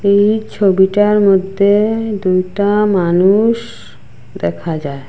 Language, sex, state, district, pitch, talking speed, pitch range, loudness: Bengali, female, Assam, Hailakandi, 200 Hz, 80 wpm, 185-210 Hz, -14 LUFS